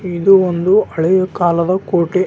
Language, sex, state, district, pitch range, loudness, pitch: Kannada, male, Karnataka, Raichur, 170-190 Hz, -14 LUFS, 185 Hz